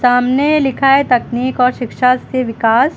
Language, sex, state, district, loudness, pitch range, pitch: Hindi, female, Uttar Pradesh, Lucknow, -14 LUFS, 245-270 Hz, 250 Hz